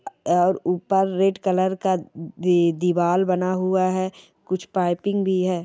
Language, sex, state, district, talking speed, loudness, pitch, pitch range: Hindi, female, Chhattisgarh, Rajnandgaon, 160 wpm, -22 LUFS, 185 Hz, 180-190 Hz